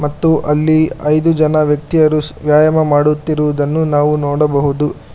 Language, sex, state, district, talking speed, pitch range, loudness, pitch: Kannada, male, Karnataka, Bangalore, 105 wpm, 150-155 Hz, -13 LUFS, 150 Hz